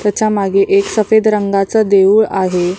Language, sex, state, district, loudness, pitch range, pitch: Marathi, female, Maharashtra, Mumbai Suburban, -12 LUFS, 195-215 Hz, 200 Hz